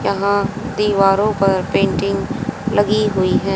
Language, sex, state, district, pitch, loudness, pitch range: Hindi, female, Haryana, Jhajjar, 200 Hz, -17 LUFS, 195-210 Hz